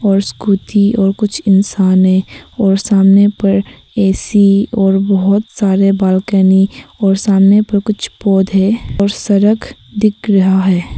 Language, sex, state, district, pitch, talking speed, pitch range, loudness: Hindi, female, Arunachal Pradesh, Papum Pare, 195 Hz, 130 wpm, 195-205 Hz, -12 LUFS